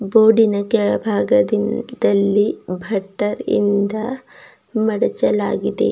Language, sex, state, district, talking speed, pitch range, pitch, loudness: Kannada, female, Karnataka, Bidar, 60 wpm, 200-225 Hz, 215 Hz, -18 LUFS